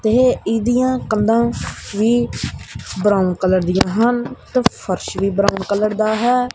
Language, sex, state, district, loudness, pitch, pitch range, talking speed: Punjabi, male, Punjab, Kapurthala, -18 LUFS, 220 Hz, 200-240 Hz, 135 wpm